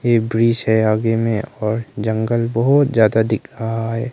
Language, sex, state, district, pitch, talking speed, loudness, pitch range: Hindi, male, Arunachal Pradesh, Longding, 115 Hz, 175 wpm, -18 LUFS, 110-115 Hz